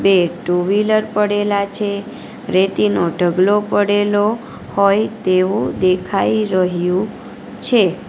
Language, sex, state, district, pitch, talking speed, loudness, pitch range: Gujarati, female, Gujarat, Valsad, 200 Hz, 95 wpm, -17 LUFS, 185-210 Hz